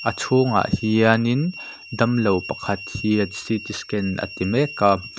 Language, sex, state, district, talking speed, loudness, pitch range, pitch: Mizo, male, Mizoram, Aizawl, 125 wpm, -21 LUFS, 100-120 Hz, 110 Hz